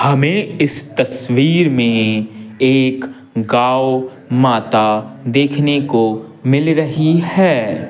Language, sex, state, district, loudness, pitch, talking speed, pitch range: Hindi, male, Bihar, Patna, -15 LUFS, 130 Hz, 90 wpm, 115-145 Hz